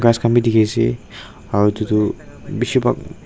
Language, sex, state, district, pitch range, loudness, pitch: Nagamese, male, Nagaland, Dimapur, 105-115 Hz, -18 LUFS, 110 Hz